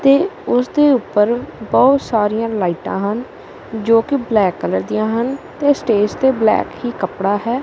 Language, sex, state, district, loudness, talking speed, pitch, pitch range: Punjabi, male, Punjab, Kapurthala, -17 LUFS, 155 wpm, 230 Hz, 210-265 Hz